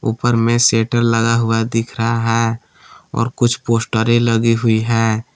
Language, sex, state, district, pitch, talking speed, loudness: Hindi, male, Jharkhand, Palamu, 115 Hz, 155 wpm, -16 LUFS